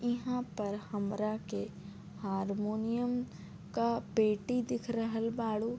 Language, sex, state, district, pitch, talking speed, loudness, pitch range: Bhojpuri, female, Uttar Pradesh, Deoria, 220 Hz, 105 wpm, -35 LUFS, 200-235 Hz